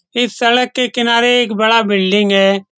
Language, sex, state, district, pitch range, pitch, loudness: Hindi, male, Bihar, Saran, 205-245 Hz, 235 Hz, -13 LUFS